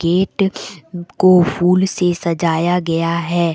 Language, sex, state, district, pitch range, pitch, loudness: Hindi, female, Jharkhand, Deoghar, 170-185 Hz, 175 Hz, -16 LUFS